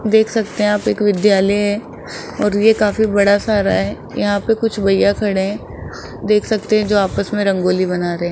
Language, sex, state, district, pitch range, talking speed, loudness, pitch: Hindi, male, Rajasthan, Jaipur, 200-215 Hz, 210 wpm, -16 LUFS, 205 Hz